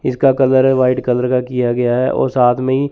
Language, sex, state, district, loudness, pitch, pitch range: Hindi, male, Chandigarh, Chandigarh, -14 LUFS, 130 Hz, 125-130 Hz